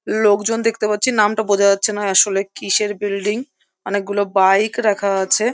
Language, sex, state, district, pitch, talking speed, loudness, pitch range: Bengali, female, West Bengal, Jhargram, 205 Hz, 150 wpm, -17 LUFS, 200-215 Hz